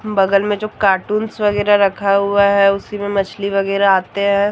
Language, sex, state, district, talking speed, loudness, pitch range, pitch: Hindi, female, Jharkhand, Deoghar, 185 wpm, -16 LUFS, 195-205 Hz, 200 Hz